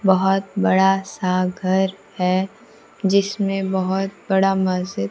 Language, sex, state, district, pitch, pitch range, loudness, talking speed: Hindi, female, Bihar, Kaimur, 190 Hz, 185-195 Hz, -20 LUFS, 105 wpm